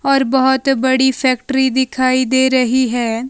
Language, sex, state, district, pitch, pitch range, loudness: Hindi, female, Himachal Pradesh, Shimla, 260 Hz, 255-265 Hz, -14 LUFS